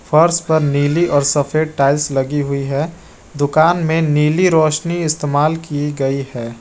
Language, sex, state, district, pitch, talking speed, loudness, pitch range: Hindi, male, Jharkhand, Garhwa, 150 Hz, 155 wpm, -16 LUFS, 140-160 Hz